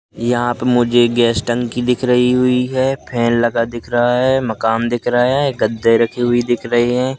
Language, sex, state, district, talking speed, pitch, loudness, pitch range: Hindi, male, Madhya Pradesh, Katni, 200 wpm, 120 Hz, -16 LUFS, 120-125 Hz